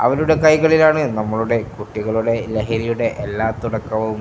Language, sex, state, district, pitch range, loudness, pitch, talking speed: Malayalam, male, Kerala, Kasaragod, 110-120 Hz, -18 LUFS, 115 Hz, 100 wpm